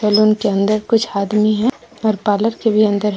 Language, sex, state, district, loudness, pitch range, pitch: Hindi, female, Jharkhand, Deoghar, -16 LUFS, 205-220 Hz, 215 Hz